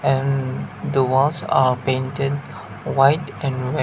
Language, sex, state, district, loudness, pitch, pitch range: English, male, Nagaland, Dimapur, -20 LUFS, 135 Hz, 130-140 Hz